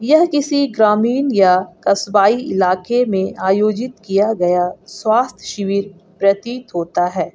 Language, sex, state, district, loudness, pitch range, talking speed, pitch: Hindi, female, Jharkhand, Garhwa, -16 LUFS, 190-245 Hz, 115 wpm, 200 Hz